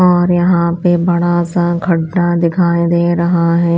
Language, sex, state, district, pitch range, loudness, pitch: Hindi, female, Chhattisgarh, Raipur, 170-175 Hz, -13 LUFS, 175 Hz